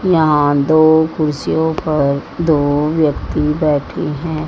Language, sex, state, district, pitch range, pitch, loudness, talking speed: Hindi, female, Haryana, Jhajjar, 145-160 Hz, 155 Hz, -15 LUFS, 105 wpm